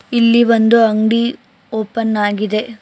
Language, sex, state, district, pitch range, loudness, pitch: Kannada, female, Karnataka, Bangalore, 215-235 Hz, -14 LUFS, 230 Hz